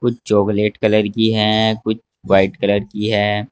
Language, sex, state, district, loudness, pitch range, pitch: Hindi, male, Uttar Pradesh, Saharanpur, -17 LUFS, 105-110 Hz, 105 Hz